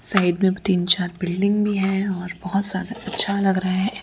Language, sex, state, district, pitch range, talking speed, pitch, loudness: Hindi, female, Gujarat, Valsad, 185-200 Hz, 210 wpm, 195 Hz, -20 LUFS